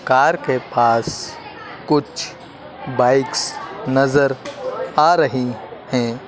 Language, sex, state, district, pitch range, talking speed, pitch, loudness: Hindi, male, Madhya Pradesh, Dhar, 125-145 Hz, 85 wpm, 130 Hz, -18 LUFS